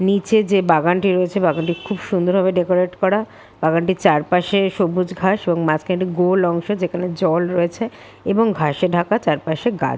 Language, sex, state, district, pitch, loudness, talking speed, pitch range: Bengali, female, West Bengal, Kolkata, 180 Hz, -18 LUFS, 170 wpm, 175-195 Hz